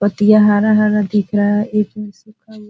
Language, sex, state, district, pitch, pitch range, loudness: Hindi, female, Bihar, Jahanabad, 210 Hz, 205-215 Hz, -14 LUFS